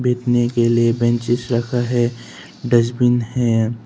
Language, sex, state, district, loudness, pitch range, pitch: Hindi, male, Arunachal Pradesh, Papum Pare, -18 LUFS, 115-120 Hz, 120 Hz